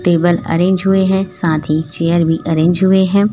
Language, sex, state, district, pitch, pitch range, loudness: Hindi, female, Chhattisgarh, Raipur, 175 Hz, 165-190 Hz, -14 LUFS